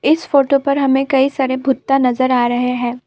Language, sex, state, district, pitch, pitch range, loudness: Hindi, female, Assam, Kamrup Metropolitan, 265 Hz, 250-275 Hz, -15 LUFS